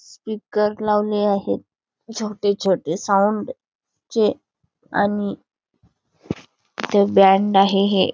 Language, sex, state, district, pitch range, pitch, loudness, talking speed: Marathi, female, Karnataka, Belgaum, 195-210 Hz, 205 Hz, -19 LUFS, 80 wpm